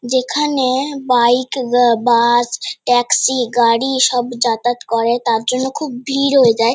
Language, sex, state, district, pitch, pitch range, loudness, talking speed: Bengali, female, West Bengal, Kolkata, 245 Hz, 240-260 Hz, -15 LUFS, 135 wpm